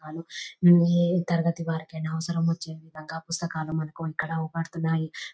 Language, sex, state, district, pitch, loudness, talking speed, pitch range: Telugu, female, Telangana, Nalgonda, 165 Hz, -26 LUFS, 100 wpm, 160-170 Hz